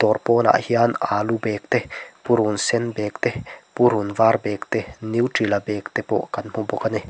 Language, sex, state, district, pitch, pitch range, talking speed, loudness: Mizo, male, Mizoram, Aizawl, 110 Hz, 105-120 Hz, 195 wpm, -21 LUFS